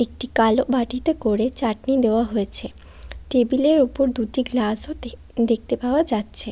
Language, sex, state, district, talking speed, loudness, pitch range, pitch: Bengali, female, West Bengal, Kolkata, 155 wpm, -21 LUFS, 225-265 Hz, 245 Hz